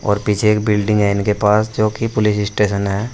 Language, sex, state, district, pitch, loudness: Hindi, male, Uttar Pradesh, Saharanpur, 105 Hz, -16 LUFS